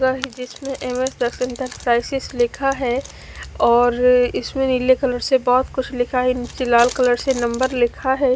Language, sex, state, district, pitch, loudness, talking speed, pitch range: Hindi, female, Haryana, Charkhi Dadri, 255 Hz, -19 LUFS, 145 wpm, 245-260 Hz